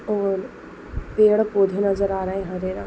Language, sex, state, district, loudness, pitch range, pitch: Hindi, female, Maharashtra, Solapur, -21 LUFS, 190-210 Hz, 195 Hz